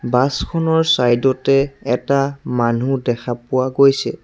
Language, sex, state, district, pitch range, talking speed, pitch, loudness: Assamese, male, Assam, Sonitpur, 120-140 Hz, 100 wpm, 130 Hz, -17 LUFS